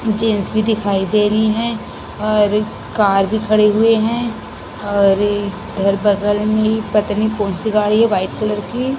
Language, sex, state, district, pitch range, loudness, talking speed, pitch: Hindi, female, Chhattisgarh, Raipur, 205-220 Hz, -16 LUFS, 155 wpm, 210 Hz